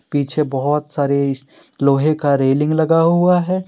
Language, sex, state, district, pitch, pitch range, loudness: Hindi, male, Jharkhand, Deoghar, 150 Hz, 140-170 Hz, -16 LUFS